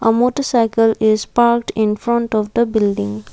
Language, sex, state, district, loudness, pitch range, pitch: English, female, Assam, Kamrup Metropolitan, -16 LUFS, 215-235 Hz, 225 Hz